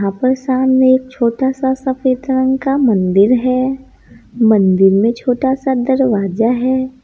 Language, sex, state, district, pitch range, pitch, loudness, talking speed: Hindi, female, Bihar, East Champaran, 230-265 Hz, 255 Hz, -14 LUFS, 145 wpm